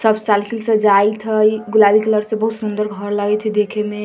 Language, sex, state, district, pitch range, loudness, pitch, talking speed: Hindi, female, Bihar, Vaishali, 210-220 Hz, -16 LUFS, 215 Hz, 220 wpm